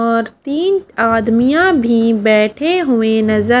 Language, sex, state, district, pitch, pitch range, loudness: Hindi, female, Haryana, Charkhi Dadri, 230 Hz, 225-300 Hz, -13 LUFS